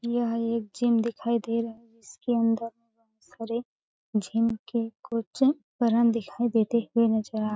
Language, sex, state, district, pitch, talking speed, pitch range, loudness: Hindi, female, Chhattisgarh, Balrampur, 230 Hz, 160 wpm, 225-235 Hz, -27 LUFS